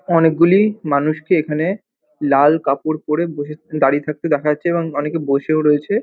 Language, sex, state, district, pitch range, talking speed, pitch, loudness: Bengali, male, West Bengal, North 24 Parganas, 150-170 Hz, 150 wpm, 155 Hz, -17 LUFS